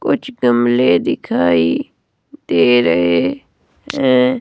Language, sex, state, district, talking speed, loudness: Hindi, female, Himachal Pradesh, Shimla, 80 wpm, -15 LUFS